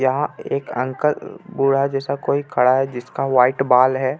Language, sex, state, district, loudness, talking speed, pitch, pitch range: Hindi, male, Jharkhand, Ranchi, -19 LUFS, 170 wpm, 135 Hz, 130-140 Hz